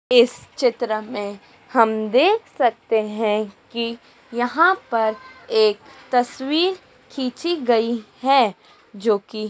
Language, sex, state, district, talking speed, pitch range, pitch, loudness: Hindi, female, Madhya Pradesh, Dhar, 105 wpm, 220-265 Hz, 240 Hz, -21 LUFS